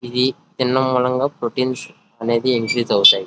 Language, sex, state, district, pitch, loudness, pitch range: Telugu, male, Andhra Pradesh, Krishna, 125 Hz, -18 LUFS, 120-130 Hz